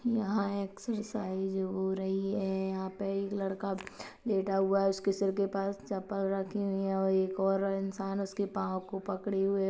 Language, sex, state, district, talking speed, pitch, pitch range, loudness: Hindi, male, Chhattisgarh, Kabirdham, 185 wpm, 195 Hz, 190-200 Hz, -33 LUFS